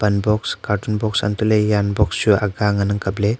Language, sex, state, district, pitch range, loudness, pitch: Wancho, male, Arunachal Pradesh, Longding, 100-105 Hz, -19 LUFS, 105 Hz